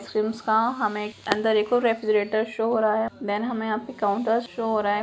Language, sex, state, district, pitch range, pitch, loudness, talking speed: Hindi, female, Bihar, Purnia, 215-225 Hz, 220 Hz, -24 LUFS, 215 wpm